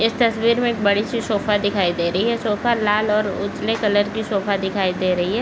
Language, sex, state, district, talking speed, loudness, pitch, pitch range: Hindi, female, Bihar, Bhagalpur, 235 wpm, -20 LUFS, 210 Hz, 200-225 Hz